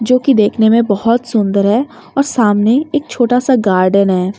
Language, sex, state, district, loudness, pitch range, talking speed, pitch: Hindi, female, Delhi, New Delhi, -13 LUFS, 205-250 Hz, 190 wpm, 230 Hz